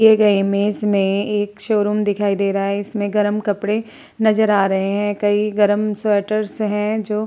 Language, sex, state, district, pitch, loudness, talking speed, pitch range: Hindi, female, Uttar Pradesh, Muzaffarnagar, 205 Hz, -18 LUFS, 190 wpm, 205-215 Hz